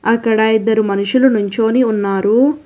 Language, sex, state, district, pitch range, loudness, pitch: Telugu, female, Telangana, Hyderabad, 210-240 Hz, -14 LUFS, 225 Hz